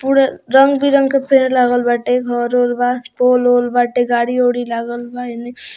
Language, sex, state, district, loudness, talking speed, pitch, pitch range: Bhojpuri, female, Bihar, Muzaffarpur, -15 LUFS, 155 wpm, 245 Hz, 245-260 Hz